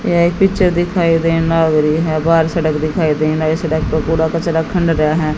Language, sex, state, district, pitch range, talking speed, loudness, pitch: Hindi, female, Haryana, Jhajjar, 155-170 Hz, 225 wpm, -15 LUFS, 165 Hz